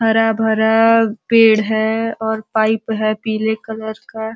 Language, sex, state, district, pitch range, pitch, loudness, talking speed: Hindi, female, Uttar Pradesh, Ghazipur, 220-225 Hz, 220 Hz, -16 LUFS, 125 wpm